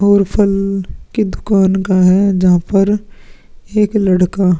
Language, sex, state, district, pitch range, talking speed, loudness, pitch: Hindi, male, Uttar Pradesh, Muzaffarnagar, 185-205 Hz, 145 wpm, -14 LUFS, 195 Hz